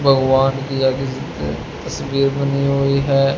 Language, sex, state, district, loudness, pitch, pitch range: Hindi, male, Haryana, Jhajjar, -18 LUFS, 135 Hz, 135-140 Hz